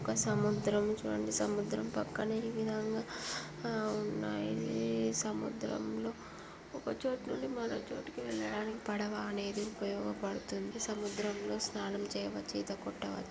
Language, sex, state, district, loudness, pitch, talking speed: Telugu, female, Andhra Pradesh, Guntur, -37 LUFS, 115 Hz, 100 wpm